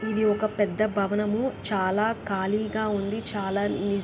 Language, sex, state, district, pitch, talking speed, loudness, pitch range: Telugu, female, Andhra Pradesh, Krishna, 210 Hz, 105 wpm, -26 LUFS, 200-215 Hz